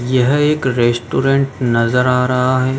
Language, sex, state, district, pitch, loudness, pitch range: Hindi, male, Uttar Pradesh, Jalaun, 125 Hz, -15 LUFS, 125-135 Hz